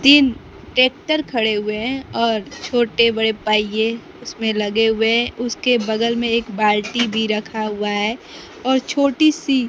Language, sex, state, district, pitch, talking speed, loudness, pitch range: Hindi, female, Bihar, Kaimur, 230 Hz, 155 wpm, -18 LUFS, 220-255 Hz